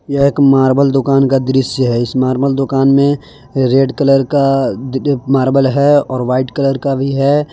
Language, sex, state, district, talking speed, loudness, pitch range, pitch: Hindi, male, Jharkhand, Palamu, 175 wpm, -13 LUFS, 130-140 Hz, 135 Hz